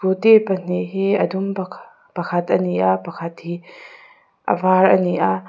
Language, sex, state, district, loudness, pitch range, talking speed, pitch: Mizo, female, Mizoram, Aizawl, -18 LUFS, 170-195 Hz, 175 wpm, 185 Hz